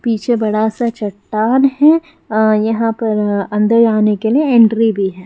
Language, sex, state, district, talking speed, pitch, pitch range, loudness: Hindi, female, Bihar, Jahanabad, 170 wpm, 225 Hz, 215-235 Hz, -14 LUFS